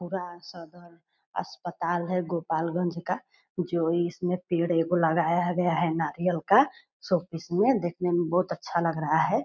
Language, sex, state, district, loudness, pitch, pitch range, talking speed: Hindi, female, Bihar, Purnia, -27 LUFS, 175 Hz, 170-180 Hz, 150 wpm